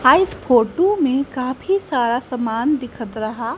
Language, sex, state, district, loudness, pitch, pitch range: Hindi, female, Haryana, Jhajjar, -19 LUFS, 255 Hz, 235-295 Hz